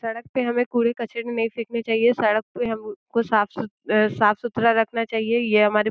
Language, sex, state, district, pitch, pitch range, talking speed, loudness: Hindi, female, Uttar Pradesh, Gorakhpur, 230 Hz, 215-235 Hz, 185 wpm, -22 LUFS